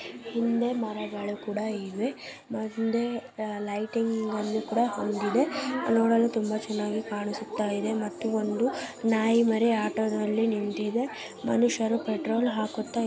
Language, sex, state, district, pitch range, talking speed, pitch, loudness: Kannada, female, Karnataka, Raichur, 210-230 Hz, 105 wpm, 220 Hz, -28 LUFS